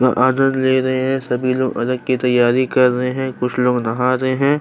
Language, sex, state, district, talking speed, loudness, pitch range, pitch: Hindi, male, Chhattisgarh, Kabirdham, 235 wpm, -17 LUFS, 125-130 Hz, 130 Hz